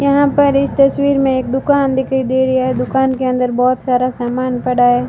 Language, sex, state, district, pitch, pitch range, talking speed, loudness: Hindi, female, Rajasthan, Barmer, 260 Hz, 250-275 Hz, 225 wpm, -14 LUFS